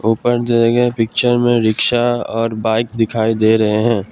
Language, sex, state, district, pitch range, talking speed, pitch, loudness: Hindi, male, Assam, Kamrup Metropolitan, 110-120 Hz, 175 wpm, 115 Hz, -15 LUFS